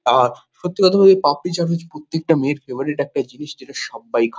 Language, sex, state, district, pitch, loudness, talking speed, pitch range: Bengali, male, West Bengal, North 24 Parganas, 150 Hz, -18 LUFS, 205 wpm, 140-170 Hz